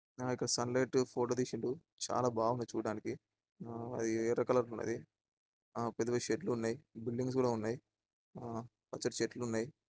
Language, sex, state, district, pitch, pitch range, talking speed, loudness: Telugu, male, Andhra Pradesh, Srikakulam, 115 Hz, 115-125 Hz, 135 wpm, -37 LUFS